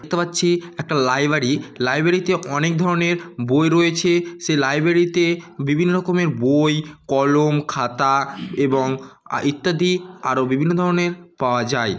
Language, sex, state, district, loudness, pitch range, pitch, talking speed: Bengali, male, West Bengal, North 24 Parganas, -19 LUFS, 140-175 Hz, 155 Hz, 130 wpm